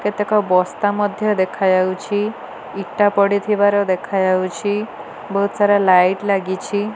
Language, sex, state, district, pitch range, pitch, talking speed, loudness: Odia, female, Odisha, Nuapada, 185-205 Hz, 200 Hz, 95 wpm, -17 LUFS